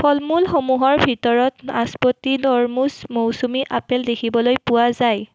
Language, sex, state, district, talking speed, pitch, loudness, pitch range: Assamese, female, Assam, Kamrup Metropolitan, 100 wpm, 250 Hz, -18 LUFS, 235-270 Hz